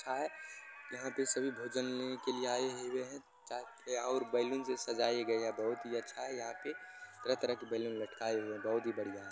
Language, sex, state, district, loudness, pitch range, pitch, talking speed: Maithili, male, Bihar, Supaul, -38 LUFS, 115-130 Hz, 125 Hz, 225 wpm